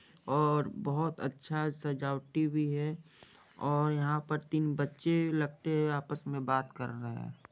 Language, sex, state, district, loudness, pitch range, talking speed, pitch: Hindi, male, Jharkhand, Jamtara, -33 LUFS, 140-155 Hz, 150 wpm, 150 Hz